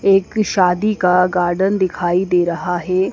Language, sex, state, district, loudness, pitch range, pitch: Hindi, female, Madhya Pradesh, Dhar, -16 LUFS, 175-195 Hz, 180 Hz